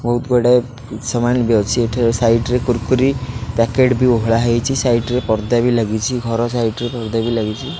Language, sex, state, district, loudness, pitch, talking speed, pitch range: Odia, male, Odisha, Khordha, -17 LUFS, 120 Hz, 175 wpm, 115-125 Hz